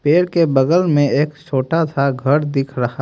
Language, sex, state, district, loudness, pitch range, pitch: Hindi, male, Haryana, Jhajjar, -16 LUFS, 135-165 Hz, 145 Hz